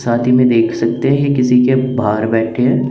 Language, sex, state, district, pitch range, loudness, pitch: Hindi, male, Chandigarh, Chandigarh, 115-130 Hz, -14 LUFS, 125 Hz